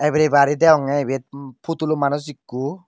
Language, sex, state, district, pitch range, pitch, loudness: Chakma, male, Tripura, Dhalai, 140-155 Hz, 145 Hz, -19 LUFS